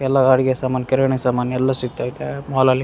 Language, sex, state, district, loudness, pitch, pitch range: Kannada, male, Karnataka, Raichur, -19 LUFS, 130 Hz, 125-130 Hz